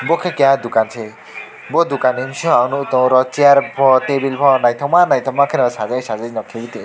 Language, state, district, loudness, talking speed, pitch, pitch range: Kokborok, Tripura, West Tripura, -15 LUFS, 190 wpm, 130 Hz, 120-140 Hz